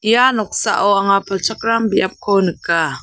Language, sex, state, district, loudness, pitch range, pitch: Garo, female, Meghalaya, South Garo Hills, -16 LUFS, 190-225 Hz, 200 Hz